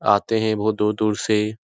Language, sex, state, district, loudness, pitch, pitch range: Hindi, male, Uttar Pradesh, Etah, -21 LUFS, 110 Hz, 105-110 Hz